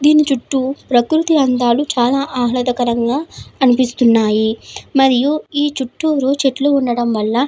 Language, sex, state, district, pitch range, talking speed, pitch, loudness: Telugu, female, Andhra Pradesh, Anantapur, 240-285 Hz, 110 wpm, 260 Hz, -15 LUFS